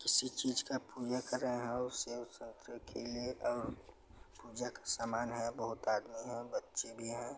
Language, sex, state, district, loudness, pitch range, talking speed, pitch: Hindi, male, Chhattisgarh, Balrampur, -39 LUFS, 115-125 Hz, 180 wpm, 120 Hz